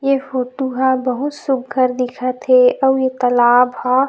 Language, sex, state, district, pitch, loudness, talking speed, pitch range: Chhattisgarhi, female, Chhattisgarh, Rajnandgaon, 255 Hz, -16 LUFS, 160 wpm, 250-265 Hz